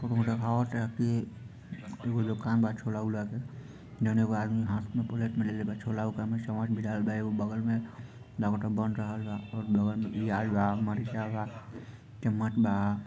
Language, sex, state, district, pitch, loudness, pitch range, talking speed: Bhojpuri, male, Bihar, Sitamarhi, 110 Hz, -32 LUFS, 105-115 Hz, 140 wpm